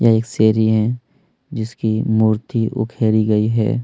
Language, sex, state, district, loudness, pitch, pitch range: Hindi, male, Chhattisgarh, Kabirdham, -17 LUFS, 110 Hz, 110-115 Hz